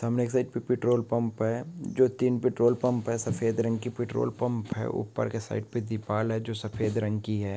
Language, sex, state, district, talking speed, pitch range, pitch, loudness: Hindi, male, Uttarakhand, Tehri Garhwal, 220 wpm, 110-125 Hz, 115 Hz, -29 LUFS